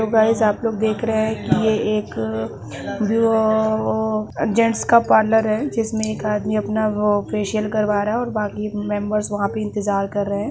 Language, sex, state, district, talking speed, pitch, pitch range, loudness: Hindi, female, Bihar, Gaya, 195 wpm, 215 Hz, 210-220 Hz, -20 LUFS